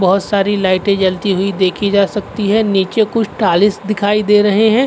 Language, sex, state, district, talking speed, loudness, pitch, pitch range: Hindi, male, Uttar Pradesh, Varanasi, 195 wpm, -14 LUFS, 205 Hz, 195-210 Hz